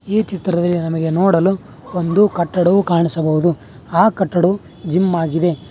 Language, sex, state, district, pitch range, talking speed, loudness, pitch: Kannada, male, Karnataka, Bangalore, 165-190 Hz, 115 wpm, -16 LUFS, 175 Hz